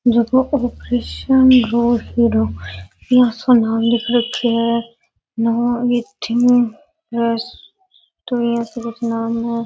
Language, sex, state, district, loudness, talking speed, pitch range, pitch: Rajasthani, female, Rajasthan, Nagaur, -17 LUFS, 50 wpm, 230-245 Hz, 235 Hz